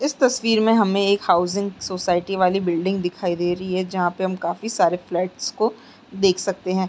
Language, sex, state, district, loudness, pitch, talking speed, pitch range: Hindi, female, Uttarakhand, Tehri Garhwal, -21 LUFS, 190 Hz, 200 wpm, 180-215 Hz